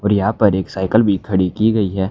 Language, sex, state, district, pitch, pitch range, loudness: Hindi, male, Haryana, Charkhi Dadri, 100 Hz, 95-105 Hz, -16 LUFS